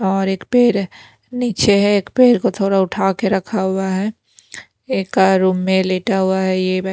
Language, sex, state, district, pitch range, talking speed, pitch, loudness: Hindi, female, Punjab, Pathankot, 190-205 Hz, 200 wpm, 195 Hz, -16 LUFS